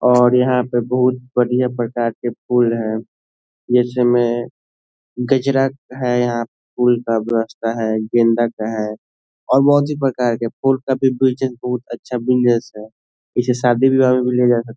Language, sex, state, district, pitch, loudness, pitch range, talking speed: Hindi, male, Bihar, Saran, 120 Hz, -17 LUFS, 115-125 Hz, 160 wpm